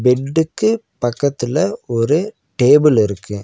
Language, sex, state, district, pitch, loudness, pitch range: Tamil, male, Tamil Nadu, Nilgiris, 130 Hz, -16 LUFS, 120-160 Hz